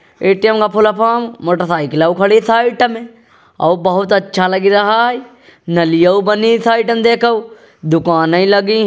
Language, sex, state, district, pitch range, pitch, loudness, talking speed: Hindi, male, Uttar Pradesh, Jyotiba Phule Nagar, 180-230 Hz, 210 Hz, -12 LUFS, 130 wpm